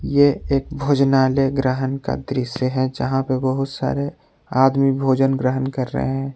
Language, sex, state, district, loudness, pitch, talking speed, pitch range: Hindi, male, Jharkhand, Palamu, -20 LUFS, 135 Hz, 160 wpm, 130-135 Hz